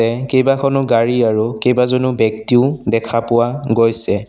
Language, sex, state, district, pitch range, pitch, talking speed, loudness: Assamese, male, Assam, Sonitpur, 115-130 Hz, 120 Hz, 125 wpm, -15 LUFS